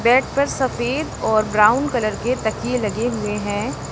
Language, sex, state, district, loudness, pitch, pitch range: Hindi, female, Uttar Pradesh, Lalitpur, -20 LUFS, 225 Hz, 210-250 Hz